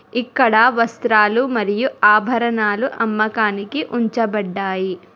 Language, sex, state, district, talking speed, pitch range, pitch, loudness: Telugu, female, Telangana, Hyderabad, 70 wpm, 210-240 Hz, 225 Hz, -17 LUFS